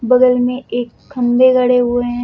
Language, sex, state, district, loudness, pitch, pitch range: Hindi, female, Uttar Pradesh, Lucknow, -14 LUFS, 245 Hz, 245-255 Hz